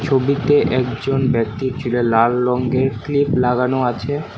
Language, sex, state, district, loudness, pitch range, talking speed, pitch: Bengali, male, West Bengal, Alipurduar, -18 LUFS, 125-135 Hz, 125 wpm, 130 Hz